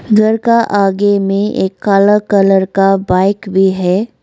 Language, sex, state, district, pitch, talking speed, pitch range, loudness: Hindi, female, Arunachal Pradesh, Lower Dibang Valley, 195 Hz, 155 wpm, 190-210 Hz, -12 LUFS